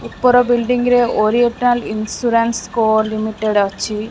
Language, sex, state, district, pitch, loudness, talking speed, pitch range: Odia, female, Odisha, Khordha, 230 Hz, -16 LUFS, 115 wpm, 215-245 Hz